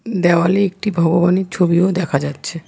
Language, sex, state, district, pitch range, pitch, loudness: Bengali, female, West Bengal, Alipurduar, 165-190 Hz, 175 Hz, -16 LUFS